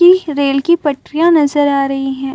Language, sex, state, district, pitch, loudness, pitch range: Hindi, female, Uttar Pradesh, Muzaffarnagar, 290 Hz, -13 LUFS, 275-330 Hz